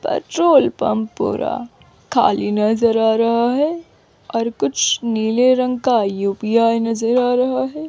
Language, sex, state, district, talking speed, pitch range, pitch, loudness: Hindi, female, Chandigarh, Chandigarh, 135 wpm, 220-255 Hz, 230 Hz, -17 LUFS